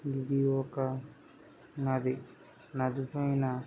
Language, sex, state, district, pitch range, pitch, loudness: Telugu, male, Andhra Pradesh, Srikakulam, 130-140 Hz, 135 Hz, -33 LUFS